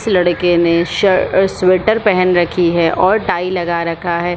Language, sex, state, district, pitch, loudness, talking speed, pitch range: Hindi, female, Bihar, Supaul, 175 Hz, -14 LUFS, 180 wpm, 170-185 Hz